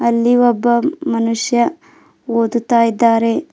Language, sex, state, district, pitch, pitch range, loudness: Kannada, female, Karnataka, Bidar, 235 Hz, 230-260 Hz, -15 LUFS